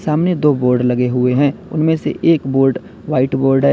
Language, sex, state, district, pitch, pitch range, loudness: Hindi, male, Uttar Pradesh, Lalitpur, 135 Hz, 125-155 Hz, -15 LUFS